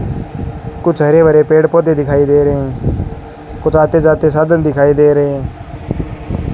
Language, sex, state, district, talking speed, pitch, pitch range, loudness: Hindi, male, Rajasthan, Bikaner, 145 wpm, 150 Hz, 140-155 Hz, -12 LUFS